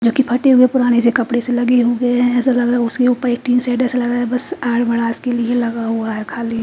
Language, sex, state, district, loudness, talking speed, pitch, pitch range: Hindi, female, Haryana, Charkhi Dadri, -16 LUFS, 280 wpm, 245 Hz, 235-250 Hz